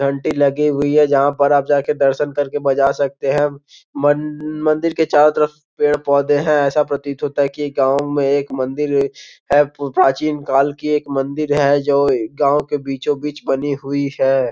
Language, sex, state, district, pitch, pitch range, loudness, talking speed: Hindi, male, Bihar, Gopalganj, 145 Hz, 140-150 Hz, -17 LUFS, 190 wpm